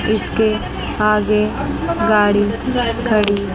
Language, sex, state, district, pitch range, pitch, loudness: Hindi, female, Chandigarh, Chandigarh, 210-220 Hz, 215 Hz, -17 LUFS